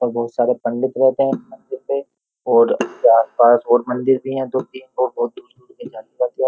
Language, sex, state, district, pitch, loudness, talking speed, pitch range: Hindi, male, Uttar Pradesh, Jyotiba Phule Nagar, 130 Hz, -18 LUFS, 175 wpm, 120-140 Hz